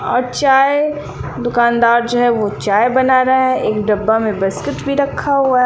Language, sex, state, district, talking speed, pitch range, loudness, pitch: Hindi, female, Bihar, West Champaran, 190 wpm, 225-265 Hz, -15 LUFS, 245 Hz